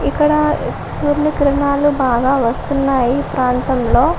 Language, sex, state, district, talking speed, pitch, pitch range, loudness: Telugu, female, Andhra Pradesh, Srikakulam, 70 wpm, 275 Hz, 255-290 Hz, -16 LUFS